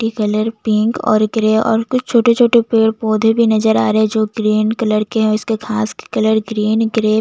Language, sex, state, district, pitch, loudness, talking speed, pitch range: Hindi, female, Chhattisgarh, Jashpur, 220 Hz, -15 LUFS, 240 wpm, 215-225 Hz